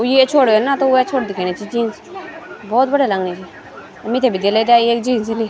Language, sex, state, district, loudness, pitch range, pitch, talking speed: Garhwali, female, Uttarakhand, Tehri Garhwal, -16 LUFS, 210-265 Hz, 235 Hz, 230 wpm